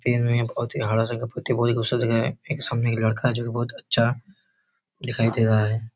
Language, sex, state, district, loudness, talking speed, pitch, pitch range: Hindi, male, Chhattisgarh, Raigarh, -23 LUFS, 160 wpm, 120 Hz, 115-125 Hz